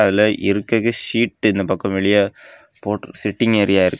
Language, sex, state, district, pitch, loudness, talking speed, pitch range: Tamil, male, Tamil Nadu, Kanyakumari, 105 Hz, -18 LUFS, 150 wpm, 100-110 Hz